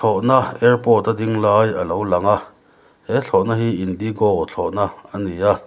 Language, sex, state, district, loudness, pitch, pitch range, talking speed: Mizo, male, Mizoram, Aizawl, -18 LUFS, 115 Hz, 110-120 Hz, 170 wpm